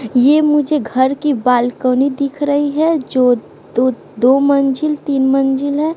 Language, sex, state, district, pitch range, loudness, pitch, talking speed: Hindi, female, Bihar, West Champaran, 255-290 Hz, -15 LUFS, 275 Hz, 150 wpm